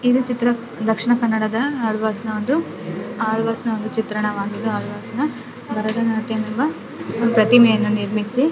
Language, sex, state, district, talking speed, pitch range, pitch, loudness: Kannada, female, Karnataka, Dakshina Kannada, 125 wpm, 215-240 Hz, 225 Hz, -20 LUFS